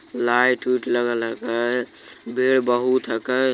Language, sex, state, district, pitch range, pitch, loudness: Magahi, male, Bihar, Jamui, 120-130 Hz, 125 Hz, -21 LUFS